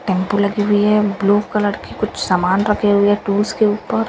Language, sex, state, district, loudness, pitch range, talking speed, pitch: Hindi, female, Bihar, Katihar, -16 LUFS, 200-210 Hz, 220 wpm, 205 Hz